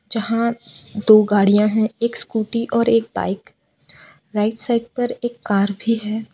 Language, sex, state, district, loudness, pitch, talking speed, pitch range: Hindi, female, Gujarat, Valsad, -19 LUFS, 220 Hz, 170 wpm, 210-235 Hz